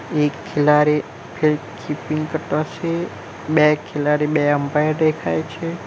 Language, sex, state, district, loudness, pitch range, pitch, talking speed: Gujarati, male, Gujarat, Valsad, -20 LUFS, 150-155 Hz, 150 Hz, 125 wpm